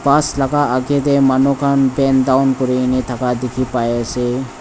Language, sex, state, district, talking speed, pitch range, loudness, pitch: Nagamese, male, Nagaland, Dimapur, 170 wpm, 125-140 Hz, -16 LUFS, 130 Hz